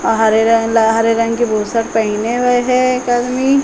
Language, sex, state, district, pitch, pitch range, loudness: Hindi, female, Uttar Pradesh, Hamirpur, 230 Hz, 225-245 Hz, -14 LUFS